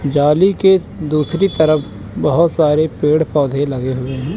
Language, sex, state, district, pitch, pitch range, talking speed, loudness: Hindi, male, Chandigarh, Chandigarh, 150 Hz, 140-160 Hz, 150 wpm, -15 LUFS